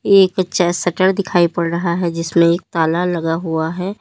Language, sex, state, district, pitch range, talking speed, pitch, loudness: Hindi, female, Uttar Pradesh, Lalitpur, 170-185 Hz, 195 wpm, 175 Hz, -17 LUFS